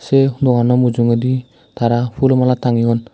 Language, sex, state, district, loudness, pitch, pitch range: Chakma, male, Tripura, Dhalai, -15 LUFS, 125 Hz, 120-130 Hz